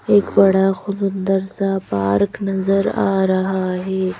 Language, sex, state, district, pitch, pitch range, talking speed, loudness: Hindi, female, Madhya Pradesh, Bhopal, 195 Hz, 190-195 Hz, 130 wpm, -18 LUFS